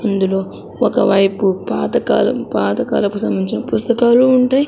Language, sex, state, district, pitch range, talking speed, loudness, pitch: Telugu, female, Andhra Pradesh, Sri Satya Sai, 195-240 Hz, 100 wpm, -16 LUFS, 205 Hz